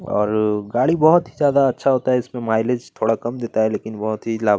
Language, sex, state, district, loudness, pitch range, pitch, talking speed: Hindi, male, Chhattisgarh, Kabirdham, -19 LUFS, 110-130 Hz, 115 Hz, 250 wpm